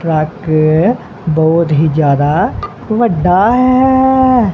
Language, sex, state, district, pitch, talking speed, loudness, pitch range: Punjabi, male, Punjab, Kapurthala, 175 Hz, 80 wpm, -11 LUFS, 155-240 Hz